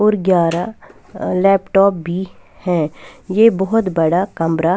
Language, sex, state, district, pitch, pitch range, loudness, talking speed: Hindi, female, Bihar, West Champaran, 185 Hz, 170-205 Hz, -16 LUFS, 125 wpm